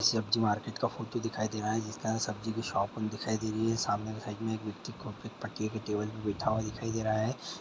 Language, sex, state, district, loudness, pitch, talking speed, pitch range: Hindi, male, Andhra Pradesh, Guntur, -34 LUFS, 110 Hz, 235 wpm, 105-115 Hz